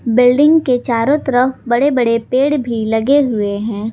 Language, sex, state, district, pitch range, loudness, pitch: Hindi, female, Jharkhand, Garhwa, 230-275 Hz, -14 LUFS, 245 Hz